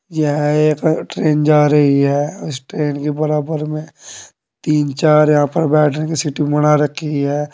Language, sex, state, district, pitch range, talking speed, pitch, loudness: Hindi, male, Uttar Pradesh, Saharanpur, 150-155 Hz, 165 wpm, 150 Hz, -15 LUFS